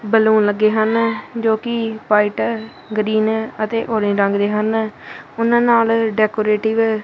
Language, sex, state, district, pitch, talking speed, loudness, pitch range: Punjabi, male, Punjab, Kapurthala, 220 Hz, 145 wpm, -17 LUFS, 215-225 Hz